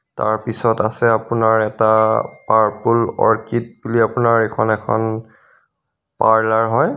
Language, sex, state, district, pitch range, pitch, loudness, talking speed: Assamese, male, Assam, Kamrup Metropolitan, 110-115 Hz, 110 Hz, -17 LUFS, 105 wpm